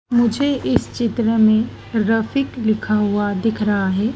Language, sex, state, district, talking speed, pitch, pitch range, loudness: Hindi, female, Madhya Pradesh, Dhar, 145 wpm, 220 Hz, 215-235 Hz, -18 LUFS